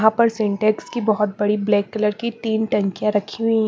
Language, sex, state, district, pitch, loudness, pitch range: Hindi, female, Bihar, Katihar, 215 Hz, -20 LUFS, 210-220 Hz